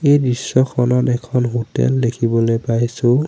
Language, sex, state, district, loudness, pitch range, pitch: Assamese, male, Assam, Sonitpur, -17 LUFS, 120-130 Hz, 125 Hz